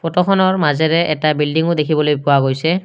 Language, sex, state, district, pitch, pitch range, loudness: Assamese, male, Assam, Kamrup Metropolitan, 160 Hz, 150-170 Hz, -15 LUFS